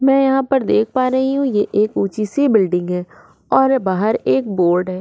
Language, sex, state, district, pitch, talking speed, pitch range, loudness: Hindi, female, Goa, North and South Goa, 215 Hz, 215 wpm, 185-265 Hz, -17 LUFS